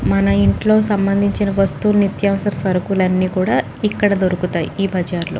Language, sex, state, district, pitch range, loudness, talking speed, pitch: Telugu, female, Telangana, Nalgonda, 180-205 Hz, -17 LUFS, 135 wpm, 195 Hz